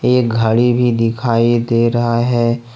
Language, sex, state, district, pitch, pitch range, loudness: Hindi, male, Jharkhand, Ranchi, 120 Hz, 115-120 Hz, -15 LUFS